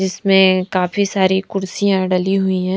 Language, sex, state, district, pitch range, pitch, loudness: Hindi, female, Punjab, Fazilka, 185-195 Hz, 190 Hz, -16 LUFS